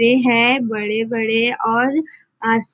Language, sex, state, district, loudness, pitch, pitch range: Hindi, female, Maharashtra, Nagpur, -16 LUFS, 230 Hz, 225-245 Hz